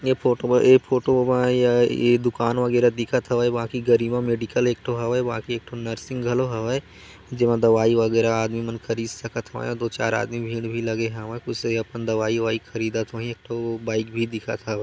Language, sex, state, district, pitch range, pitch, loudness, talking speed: Chhattisgarhi, male, Chhattisgarh, Korba, 115-120 Hz, 115 Hz, -23 LUFS, 200 wpm